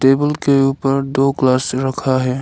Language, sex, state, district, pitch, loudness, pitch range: Hindi, male, Arunachal Pradesh, Lower Dibang Valley, 135 Hz, -16 LUFS, 130-135 Hz